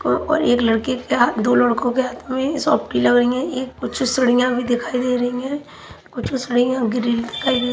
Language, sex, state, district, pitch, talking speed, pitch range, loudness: Hindi, female, Haryana, Rohtak, 250 Hz, 210 wpm, 245-260 Hz, -19 LUFS